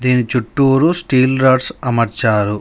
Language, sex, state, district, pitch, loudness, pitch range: Telugu, male, Telangana, Mahabubabad, 125 Hz, -14 LUFS, 115-135 Hz